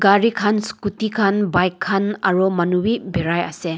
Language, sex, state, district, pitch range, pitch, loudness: Nagamese, female, Nagaland, Dimapur, 180-210 Hz, 200 Hz, -19 LUFS